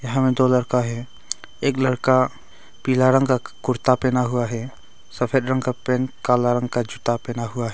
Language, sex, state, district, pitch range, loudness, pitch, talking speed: Hindi, male, Arunachal Pradesh, Longding, 120-130 Hz, -21 LUFS, 125 Hz, 195 wpm